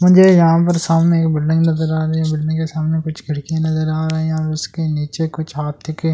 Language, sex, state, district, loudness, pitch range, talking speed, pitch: Hindi, male, Delhi, New Delhi, -17 LUFS, 155-165 Hz, 255 wpm, 160 Hz